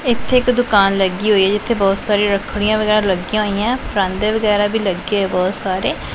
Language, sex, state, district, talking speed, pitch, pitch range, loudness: Punjabi, female, Punjab, Pathankot, 205 wpm, 205 Hz, 195-215 Hz, -16 LUFS